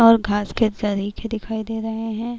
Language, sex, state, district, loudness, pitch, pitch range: Urdu, female, Bihar, Kishanganj, -22 LUFS, 225 Hz, 210-225 Hz